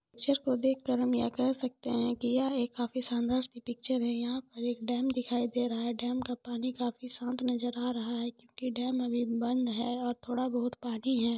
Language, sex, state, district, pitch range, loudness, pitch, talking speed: Hindi, female, Jharkhand, Jamtara, 240-255 Hz, -33 LUFS, 245 Hz, 225 wpm